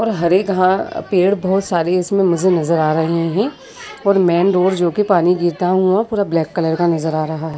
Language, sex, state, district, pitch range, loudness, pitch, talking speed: Hindi, female, Uttar Pradesh, Jyotiba Phule Nagar, 165-195 Hz, -16 LUFS, 180 Hz, 215 wpm